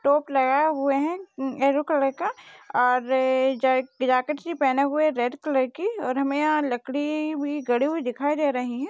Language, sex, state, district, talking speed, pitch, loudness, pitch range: Hindi, female, Maharashtra, Dhule, 175 wpm, 275 Hz, -24 LUFS, 260-300 Hz